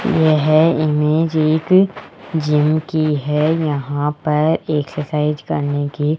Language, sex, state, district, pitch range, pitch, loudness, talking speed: Hindi, male, Rajasthan, Jaipur, 150-160 Hz, 150 Hz, -17 LUFS, 115 wpm